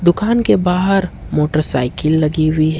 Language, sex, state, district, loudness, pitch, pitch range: Hindi, male, Jharkhand, Ranchi, -15 LUFS, 155 Hz, 155-180 Hz